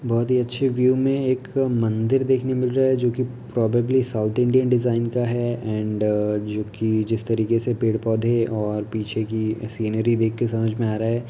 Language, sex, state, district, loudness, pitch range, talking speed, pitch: Hindi, male, Uttar Pradesh, Etah, -22 LUFS, 110-125 Hz, 200 wpm, 115 Hz